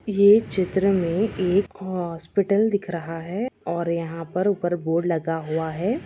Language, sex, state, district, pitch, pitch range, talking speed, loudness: Hindi, female, Rajasthan, Nagaur, 180 Hz, 165-200 Hz, 160 wpm, -23 LUFS